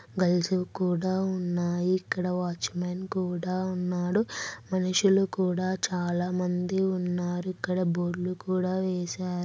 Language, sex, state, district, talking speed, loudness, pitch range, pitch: Telugu, female, Andhra Pradesh, Anantapur, 125 wpm, -28 LUFS, 180-185 Hz, 180 Hz